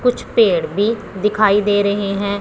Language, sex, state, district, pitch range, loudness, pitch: Hindi, female, Punjab, Pathankot, 200-235 Hz, -16 LUFS, 210 Hz